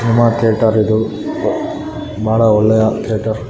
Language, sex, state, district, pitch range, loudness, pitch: Kannada, male, Karnataka, Raichur, 110-115 Hz, -15 LUFS, 110 Hz